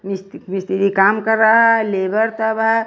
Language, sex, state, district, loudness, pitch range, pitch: Hindi, female, Bihar, West Champaran, -16 LUFS, 195-220 Hz, 215 Hz